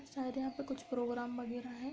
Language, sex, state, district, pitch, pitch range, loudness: Hindi, female, Uttar Pradesh, Budaun, 255 Hz, 245-270 Hz, -40 LUFS